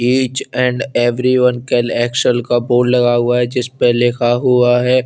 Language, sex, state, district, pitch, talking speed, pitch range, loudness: Hindi, male, Chandigarh, Chandigarh, 125 Hz, 165 wpm, 120-125 Hz, -14 LUFS